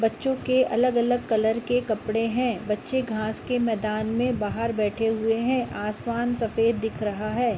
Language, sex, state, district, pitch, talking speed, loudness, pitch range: Hindi, female, Uttar Pradesh, Muzaffarnagar, 230 Hz, 165 wpm, -25 LUFS, 220-245 Hz